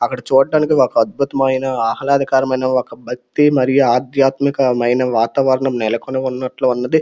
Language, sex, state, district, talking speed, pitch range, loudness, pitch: Telugu, male, Andhra Pradesh, Srikakulam, 120 wpm, 125-140 Hz, -16 LUFS, 130 Hz